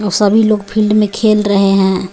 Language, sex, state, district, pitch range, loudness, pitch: Hindi, female, Jharkhand, Garhwa, 195-215 Hz, -12 LUFS, 205 Hz